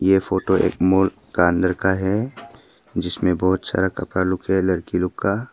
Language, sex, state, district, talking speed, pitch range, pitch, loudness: Hindi, male, Arunachal Pradesh, Papum Pare, 185 wpm, 90-95 Hz, 95 Hz, -21 LUFS